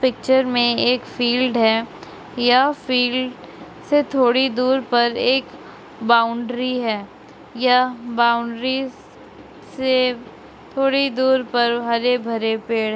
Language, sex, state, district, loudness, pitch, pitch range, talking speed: Hindi, female, West Bengal, Purulia, -19 LUFS, 250 Hz, 235-260 Hz, 105 wpm